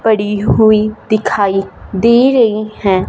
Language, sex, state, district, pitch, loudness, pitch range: Hindi, female, Punjab, Fazilka, 215 Hz, -12 LUFS, 205-220 Hz